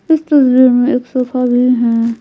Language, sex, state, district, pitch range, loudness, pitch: Hindi, female, Bihar, Patna, 245-260 Hz, -12 LUFS, 250 Hz